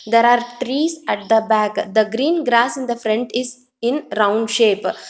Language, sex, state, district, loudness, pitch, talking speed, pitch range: English, female, Telangana, Hyderabad, -18 LUFS, 240 Hz, 190 wpm, 220-255 Hz